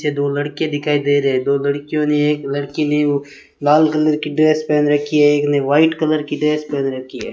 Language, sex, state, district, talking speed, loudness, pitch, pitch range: Hindi, male, Rajasthan, Bikaner, 245 wpm, -17 LUFS, 150 Hz, 145-150 Hz